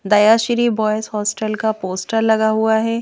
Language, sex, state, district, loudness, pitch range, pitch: Hindi, female, Madhya Pradesh, Bhopal, -17 LUFS, 215-225 Hz, 220 Hz